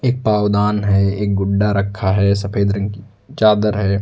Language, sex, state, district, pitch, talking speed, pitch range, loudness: Hindi, male, Uttar Pradesh, Lucknow, 100 Hz, 180 wpm, 100-105 Hz, -17 LUFS